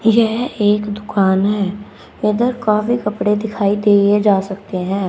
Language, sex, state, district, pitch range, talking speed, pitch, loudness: Hindi, female, Haryana, Rohtak, 200-220 Hz, 155 wpm, 210 Hz, -16 LUFS